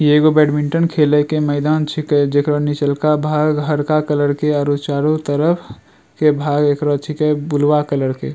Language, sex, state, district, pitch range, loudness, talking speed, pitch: Angika, male, Bihar, Bhagalpur, 145-150 Hz, -16 LUFS, 165 wpm, 150 Hz